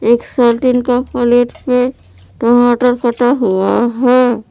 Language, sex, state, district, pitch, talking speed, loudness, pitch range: Hindi, female, Jharkhand, Palamu, 245 Hz, 120 wpm, -13 LUFS, 235-250 Hz